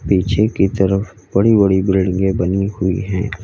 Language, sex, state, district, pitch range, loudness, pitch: Hindi, male, Uttar Pradesh, Lalitpur, 95-100 Hz, -16 LUFS, 95 Hz